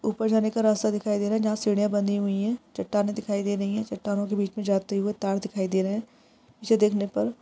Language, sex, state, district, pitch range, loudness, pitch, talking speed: Hindi, female, Rajasthan, Nagaur, 200-215 Hz, -26 LUFS, 210 Hz, 265 wpm